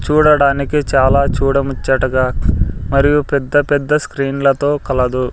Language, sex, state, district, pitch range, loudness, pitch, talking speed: Telugu, male, Andhra Pradesh, Sri Satya Sai, 130-145 Hz, -15 LUFS, 140 Hz, 100 wpm